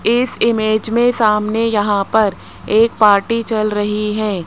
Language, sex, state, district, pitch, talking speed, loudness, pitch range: Hindi, male, Rajasthan, Jaipur, 215 Hz, 150 wpm, -15 LUFS, 210-230 Hz